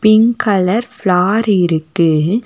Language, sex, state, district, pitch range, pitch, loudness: Tamil, female, Tamil Nadu, Nilgiris, 175-220 Hz, 200 Hz, -14 LUFS